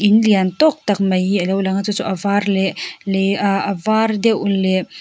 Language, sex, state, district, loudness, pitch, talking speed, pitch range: Mizo, female, Mizoram, Aizawl, -17 LUFS, 200 Hz, 205 wpm, 190-210 Hz